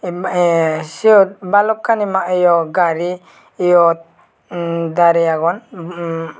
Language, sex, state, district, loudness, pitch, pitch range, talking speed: Chakma, male, Tripura, West Tripura, -15 LUFS, 175 Hz, 170-185 Hz, 75 wpm